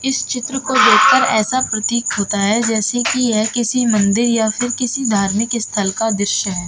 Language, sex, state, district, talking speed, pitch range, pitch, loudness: Hindi, female, Uttar Pradesh, Shamli, 180 wpm, 210-245 Hz, 225 Hz, -15 LUFS